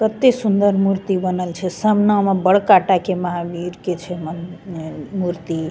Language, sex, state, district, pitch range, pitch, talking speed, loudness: Maithili, female, Bihar, Begusarai, 175-200 Hz, 185 Hz, 180 wpm, -18 LUFS